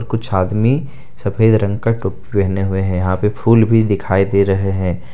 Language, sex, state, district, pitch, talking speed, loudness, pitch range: Hindi, male, Jharkhand, Deoghar, 100 Hz, 200 wpm, -16 LUFS, 95-115 Hz